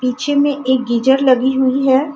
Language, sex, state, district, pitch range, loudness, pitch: Hindi, female, Jharkhand, Ranchi, 255-275 Hz, -14 LUFS, 265 Hz